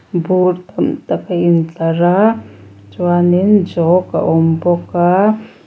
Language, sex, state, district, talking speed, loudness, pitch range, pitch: Mizo, female, Mizoram, Aizawl, 125 wpm, -14 LUFS, 165-185 Hz, 175 Hz